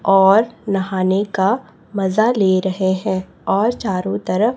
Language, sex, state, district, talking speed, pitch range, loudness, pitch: Hindi, female, Chhattisgarh, Raipur, 130 wpm, 190-215 Hz, -18 LUFS, 195 Hz